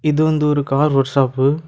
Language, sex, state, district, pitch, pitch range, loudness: Tamil, male, Tamil Nadu, Kanyakumari, 145 Hz, 135-150 Hz, -16 LUFS